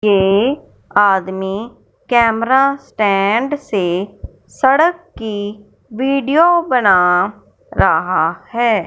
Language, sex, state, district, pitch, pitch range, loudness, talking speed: Hindi, male, Punjab, Fazilka, 225 Hz, 200-270 Hz, -15 LUFS, 75 wpm